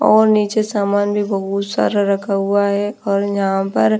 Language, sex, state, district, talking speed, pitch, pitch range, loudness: Hindi, female, Bihar, Patna, 195 wpm, 200 Hz, 195-205 Hz, -17 LUFS